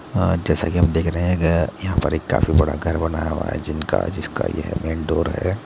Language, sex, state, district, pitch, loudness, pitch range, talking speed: Hindi, male, Uttar Pradesh, Muzaffarnagar, 85 Hz, -21 LUFS, 80-90 Hz, 210 wpm